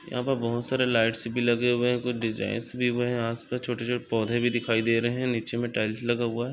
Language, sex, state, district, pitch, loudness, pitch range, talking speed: Hindi, male, Maharashtra, Sindhudurg, 120 Hz, -27 LUFS, 115-125 Hz, 230 wpm